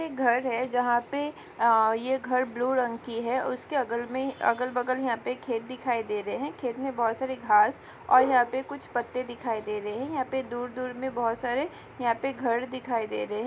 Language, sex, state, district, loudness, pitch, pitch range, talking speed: Hindi, female, Chhattisgarh, Raigarh, -28 LUFS, 250 Hz, 235-260 Hz, 225 wpm